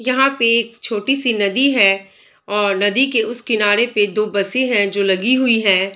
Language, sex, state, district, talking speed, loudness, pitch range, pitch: Hindi, female, Bihar, Darbhanga, 200 wpm, -16 LUFS, 200-245 Hz, 220 Hz